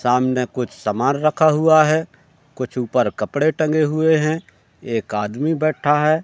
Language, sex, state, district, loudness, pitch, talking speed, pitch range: Hindi, male, Madhya Pradesh, Katni, -19 LUFS, 150 Hz, 155 wpm, 125-155 Hz